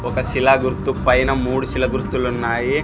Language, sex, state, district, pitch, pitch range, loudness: Telugu, male, Andhra Pradesh, Sri Satya Sai, 130 Hz, 120-130 Hz, -19 LUFS